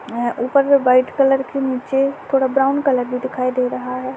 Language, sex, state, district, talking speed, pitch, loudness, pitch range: Hindi, female, Uttar Pradesh, Jyotiba Phule Nagar, 215 wpm, 260 Hz, -18 LUFS, 255-270 Hz